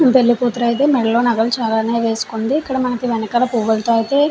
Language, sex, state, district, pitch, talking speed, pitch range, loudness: Telugu, female, Andhra Pradesh, Chittoor, 240 Hz, 165 wpm, 225-250 Hz, -17 LUFS